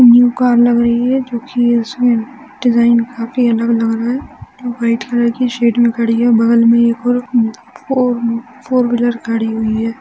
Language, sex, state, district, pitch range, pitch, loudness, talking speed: Hindi, female, Bihar, Samastipur, 230-245 Hz, 235 Hz, -14 LUFS, 185 wpm